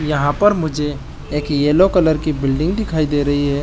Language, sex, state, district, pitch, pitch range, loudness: Chhattisgarhi, male, Chhattisgarh, Jashpur, 150 Hz, 145-160 Hz, -17 LUFS